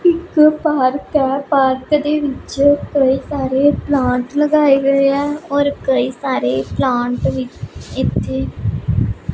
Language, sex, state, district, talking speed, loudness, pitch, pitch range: Punjabi, female, Punjab, Pathankot, 120 wpm, -16 LUFS, 270 Hz, 240-285 Hz